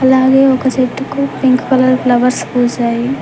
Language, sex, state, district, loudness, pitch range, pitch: Telugu, female, Telangana, Mahabubabad, -12 LUFS, 250-260 Hz, 255 Hz